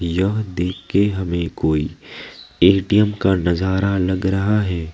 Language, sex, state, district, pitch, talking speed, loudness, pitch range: Hindi, male, West Bengal, Alipurduar, 95 Hz, 120 wpm, -19 LUFS, 85-100 Hz